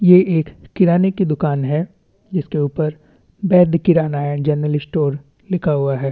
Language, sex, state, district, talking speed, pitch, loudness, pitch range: Hindi, male, Chhattisgarh, Bastar, 155 wpm, 155 Hz, -17 LUFS, 145-180 Hz